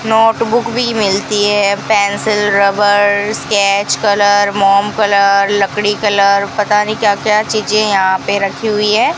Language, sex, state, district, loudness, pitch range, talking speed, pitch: Hindi, female, Rajasthan, Bikaner, -12 LUFS, 200-215 Hz, 145 wpm, 205 Hz